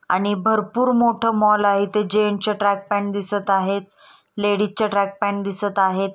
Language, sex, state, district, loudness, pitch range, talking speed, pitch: Marathi, female, Maharashtra, Pune, -20 LUFS, 200-210 Hz, 155 wpm, 205 Hz